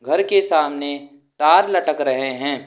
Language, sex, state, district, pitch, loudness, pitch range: Hindi, male, Uttar Pradesh, Lucknow, 145 Hz, -18 LUFS, 140-155 Hz